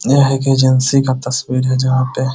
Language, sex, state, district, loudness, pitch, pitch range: Hindi, male, Bihar, Muzaffarpur, -14 LUFS, 130 Hz, 130-135 Hz